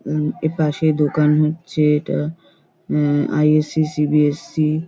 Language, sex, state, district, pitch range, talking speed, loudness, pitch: Bengali, female, West Bengal, North 24 Parganas, 150-155 Hz, 110 wpm, -18 LUFS, 150 Hz